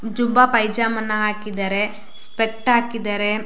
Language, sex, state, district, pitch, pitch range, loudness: Kannada, female, Karnataka, Shimoga, 215 Hz, 210-230 Hz, -20 LUFS